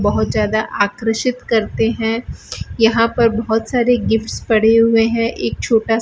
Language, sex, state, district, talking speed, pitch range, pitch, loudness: Hindi, female, Rajasthan, Bikaner, 160 wpm, 225-230 Hz, 225 Hz, -16 LUFS